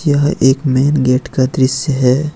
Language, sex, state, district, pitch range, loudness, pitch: Hindi, male, Jharkhand, Ranchi, 130-145 Hz, -14 LUFS, 135 Hz